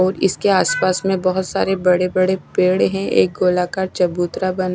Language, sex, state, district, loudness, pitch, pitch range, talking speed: Hindi, female, Odisha, Nuapada, -18 LUFS, 185 Hz, 180-190 Hz, 175 wpm